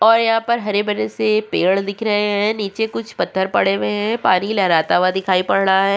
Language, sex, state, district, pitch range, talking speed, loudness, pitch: Hindi, female, Uttarakhand, Tehri Garhwal, 185-215 Hz, 230 wpm, -18 LUFS, 205 Hz